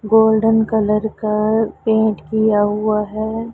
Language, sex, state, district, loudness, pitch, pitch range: Hindi, female, Punjab, Pathankot, -17 LUFS, 220 Hz, 210-220 Hz